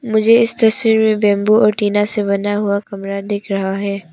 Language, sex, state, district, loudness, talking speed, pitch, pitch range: Hindi, female, Arunachal Pradesh, Papum Pare, -15 LUFS, 190 wpm, 205 Hz, 200-220 Hz